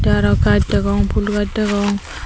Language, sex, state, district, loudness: Chakma, female, Tripura, Dhalai, -17 LUFS